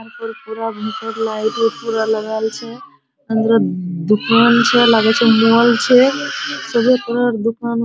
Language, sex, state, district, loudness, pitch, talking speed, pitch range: Hindi, female, Bihar, Araria, -15 LUFS, 230 Hz, 175 wpm, 220-240 Hz